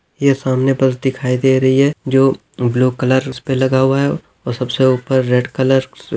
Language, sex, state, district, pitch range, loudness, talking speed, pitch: Hindi, male, Chhattisgarh, Bilaspur, 130-135 Hz, -15 LUFS, 205 wpm, 130 Hz